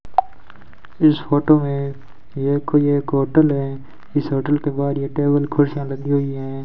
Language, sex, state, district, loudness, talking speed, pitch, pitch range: Hindi, male, Rajasthan, Bikaner, -19 LUFS, 160 wpm, 145 Hz, 140-145 Hz